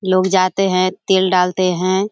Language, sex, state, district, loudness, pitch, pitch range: Hindi, female, Bihar, Kishanganj, -16 LUFS, 185 Hz, 185-190 Hz